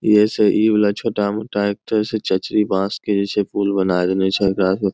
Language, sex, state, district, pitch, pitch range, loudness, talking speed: Angika, male, Bihar, Bhagalpur, 100 Hz, 95-105 Hz, -18 LUFS, 205 wpm